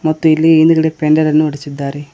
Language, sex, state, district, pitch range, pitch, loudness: Kannada, male, Karnataka, Koppal, 145-160 Hz, 155 Hz, -12 LUFS